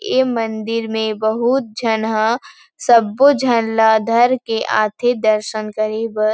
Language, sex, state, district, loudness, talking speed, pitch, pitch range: Chhattisgarhi, female, Chhattisgarh, Rajnandgaon, -17 LUFS, 150 wpm, 225 Hz, 220-245 Hz